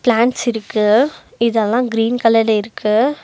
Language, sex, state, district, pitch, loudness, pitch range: Tamil, female, Tamil Nadu, Nilgiris, 230 Hz, -16 LUFS, 220-240 Hz